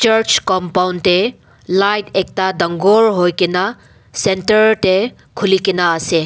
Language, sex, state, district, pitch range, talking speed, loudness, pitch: Nagamese, male, Nagaland, Dimapur, 180-210 Hz, 145 wpm, -15 LUFS, 190 Hz